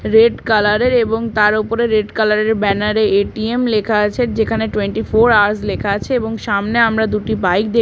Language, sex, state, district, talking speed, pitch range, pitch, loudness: Bengali, female, West Bengal, Paschim Medinipur, 220 wpm, 210-225 Hz, 220 Hz, -15 LUFS